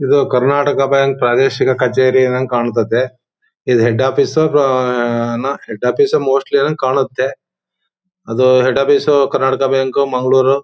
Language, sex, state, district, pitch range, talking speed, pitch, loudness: Kannada, male, Karnataka, Shimoga, 125-140 Hz, 125 wpm, 135 Hz, -14 LUFS